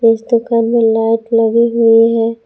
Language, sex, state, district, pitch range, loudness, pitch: Hindi, female, Jharkhand, Palamu, 225-230 Hz, -12 LUFS, 230 Hz